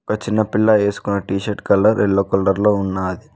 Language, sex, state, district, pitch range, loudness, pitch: Telugu, male, Telangana, Mahabubabad, 95-105 Hz, -17 LUFS, 100 Hz